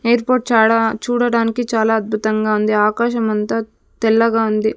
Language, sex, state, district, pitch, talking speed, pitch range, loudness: Telugu, female, Andhra Pradesh, Sri Satya Sai, 225 Hz, 115 wpm, 215-235 Hz, -16 LUFS